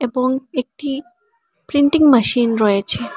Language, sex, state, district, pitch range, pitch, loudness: Bengali, female, Assam, Hailakandi, 235-300 Hz, 260 Hz, -16 LUFS